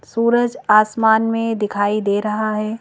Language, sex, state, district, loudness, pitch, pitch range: Hindi, female, Madhya Pradesh, Bhopal, -17 LUFS, 220 Hz, 210-225 Hz